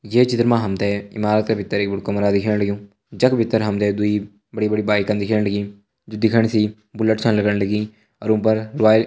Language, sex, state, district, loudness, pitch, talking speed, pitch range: Hindi, male, Uttarakhand, Tehri Garhwal, -19 LUFS, 105 Hz, 225 wpm, 100-110 Hz